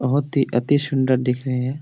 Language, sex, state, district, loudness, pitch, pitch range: Hindi, male, Jharkhand, Jamtara, -20 LUFS, 130 Hz, 125-140 Hz